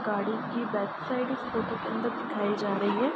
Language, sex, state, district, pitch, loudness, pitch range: Hindi, female, Uttar Pradesh, Ghazipur, 210 Hz, -30 LUFS, 200-250 Hz